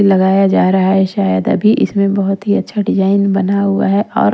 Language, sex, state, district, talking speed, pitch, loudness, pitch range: Hindi, female, Punjab, Pathankot, 205 wpm, 195 Hz, -13 LUFS, 195-200 Hz